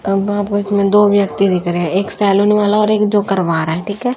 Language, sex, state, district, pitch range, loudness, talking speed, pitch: Hindi, female, Haryana, Charkhi Dadri, 195-205 Hz, -14 LUFS, 260 wpm, 200 Hz